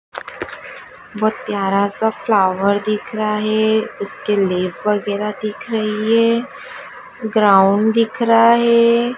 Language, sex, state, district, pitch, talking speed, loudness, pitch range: Hindi, female, Madhya Pradesh, Dhar, 215 Hz, 110 wpm, -16 LUFS, 205-230 Hz